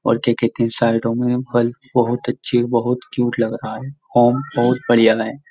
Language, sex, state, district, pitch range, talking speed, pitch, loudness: Hindi, male, Uttar Pradesh, Jyotiba Phule Nagar, 115-125 Hz, 195 wpm, 120 Hz, -18 LUFS